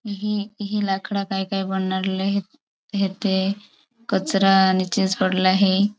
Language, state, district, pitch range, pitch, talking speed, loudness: Bhili, Maharashtra, Dhule, 190-205 Hz, 195 Hz, 120 wpm, -22 LUFS